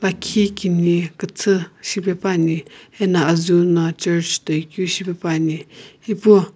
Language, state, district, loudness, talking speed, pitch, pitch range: Sumi, Nagaland, Kohima, -19 LUFS, 110 wpm, 175 Hz, 165-195 Hz